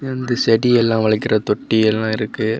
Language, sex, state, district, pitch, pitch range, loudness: Tamil, male, Tamil Nadu, Kanyakumari, 110 Hz, 110-120 Hz, -17 LUFS